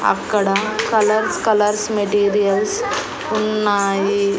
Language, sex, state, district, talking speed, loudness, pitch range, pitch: Telugu, female, Andhra Pradesh, Annamaya, 70 wpm, -18 LUFS, 200-215 Hz, 205 Hz